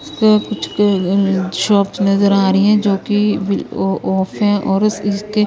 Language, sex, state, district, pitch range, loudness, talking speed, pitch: Hindi, female, Punjab, Kapurthala, 195-210 Hz, -15 LUFS, 130 wpm, 200 Hz